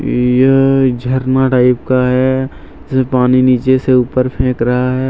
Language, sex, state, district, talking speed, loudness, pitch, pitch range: Hindi, male, Jharkhand, Deoghar, 155 wpm, -12 LUFS, 130 Hz, 125-130 Hz